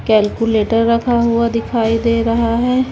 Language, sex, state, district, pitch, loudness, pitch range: Hindi, female, Chhattisgarh, Raipur, 230 Hz, -15 LUFS, 225-235 Hz